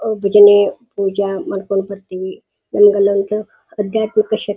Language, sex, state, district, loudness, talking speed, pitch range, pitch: Kannada, female, Karnataka, Dharwad, -15 LUFS, 120 wpm, 195-210 Hz, 205 Hz